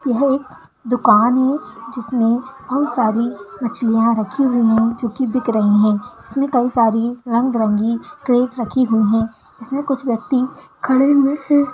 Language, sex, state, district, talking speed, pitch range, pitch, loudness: Hindi, female, Bihar, Kishanganj, 155 wpm, 230-270 Hz, 245 Hz, -17 LUFS